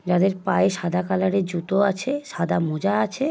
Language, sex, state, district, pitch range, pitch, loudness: Bengali, female, West Bengal, Paschim Medinipur, 180-200 Hz, 190 Hz, -23 LUFS